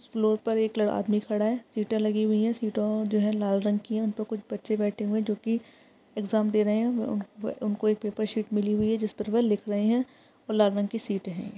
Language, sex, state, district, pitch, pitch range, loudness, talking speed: Hindi, female, Uttar Pradesh, Varanasi, 215 Hz, 210-220 Hz, -27 LUFS, 260 wpm